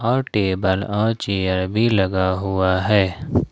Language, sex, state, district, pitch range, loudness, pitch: Hindi, male, Jharkhand, Ranchi, 95-105 Hz, -20 LUFS, 95 Hz